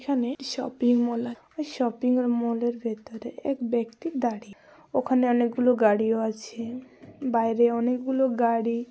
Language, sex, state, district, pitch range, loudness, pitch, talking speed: Bengali, female, West Bengal, Paschim Medinipur, 230-260 Hz, -26 LUFS, 240 Hz, 135 wpm